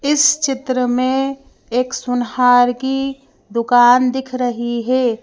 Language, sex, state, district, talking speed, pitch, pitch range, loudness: Hindi, female, Madhya Pradesh, Bhopal, 115 wpm, 255 Hz, 245-265 Hz, -16 LUFS